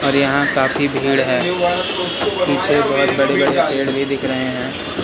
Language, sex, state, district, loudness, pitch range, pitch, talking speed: Hindi, male, Madhya Pradesh, Katni, -17 LUFS, 135-140 Hz, 135 Hz, 155 wpm